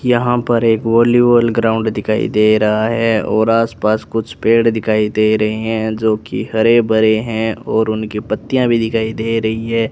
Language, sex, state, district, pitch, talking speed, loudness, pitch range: Hindi, male, Rajasthan, Bikaner, 110 Hz, 180 wpm, -15 LUFS, 110-115 Hz